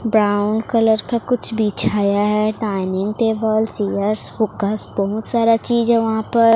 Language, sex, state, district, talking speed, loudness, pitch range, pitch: Hindi, female, Odisha, Sambalpur, 135 wpm, -17 LUFS, 205-230 Hz, 220 Hz